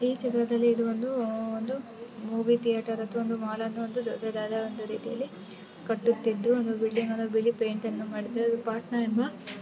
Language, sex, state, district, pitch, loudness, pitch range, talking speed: Kannada, female, Karnataka, Bijapur, 225 Hz, -29 LUFS, 220-235 Hz, 160 wpm